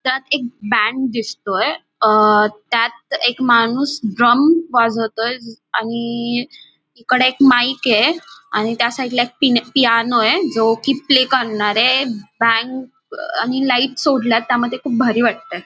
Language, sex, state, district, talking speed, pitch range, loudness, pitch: Marathi, female, Maharashtra, Dhule, 145 wpm, 230-260 Hz, -16 LUFS, 240 Hz